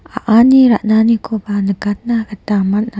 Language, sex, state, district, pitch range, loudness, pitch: Garo, female, Meghalaya, West Garo Hills, 205-230 Hz, -13 LUFS, 215 Hz